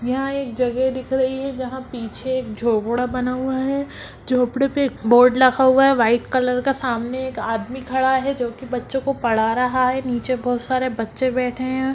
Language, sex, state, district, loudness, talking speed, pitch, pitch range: Hindi, female, Bihar, Lakhisarai, -20 LUFS, 205 wpm, 255 Hz, 245-260 Hz